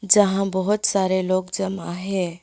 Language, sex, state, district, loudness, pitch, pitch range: Hindi, female, West Bengal, Alipurduar, -21 LUFS, 190 Hz, 185-195 Hz